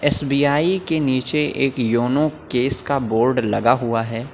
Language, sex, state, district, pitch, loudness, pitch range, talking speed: Hindi, male, Uttar Pradesh, Lucknow, 135 Hz, -19 LUFS, 120-145 Hz, 150 wpm